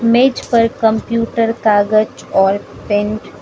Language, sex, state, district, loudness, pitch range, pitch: Hindi, female, Manipur, Imphal West, -15 LUFS, 210-230 Hz, 220 Hz